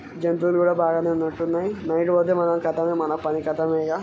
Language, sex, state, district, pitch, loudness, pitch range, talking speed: Telugu, male, Telangana, Karimnagar, 165 Hz, -22 LUFS, 160-175 Hz, 195 wpm